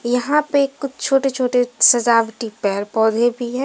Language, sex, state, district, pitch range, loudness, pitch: Hindi, female, Jharkhand, Deoghar, 230-270 Hz, -17 LUFS, 245 Hz